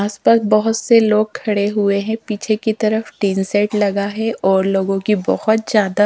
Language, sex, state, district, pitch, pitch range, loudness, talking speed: Hindi, female, Odisha, Sambalpur, 210 Hz, 200-220 Hz, -17 LUFS, 200 wpm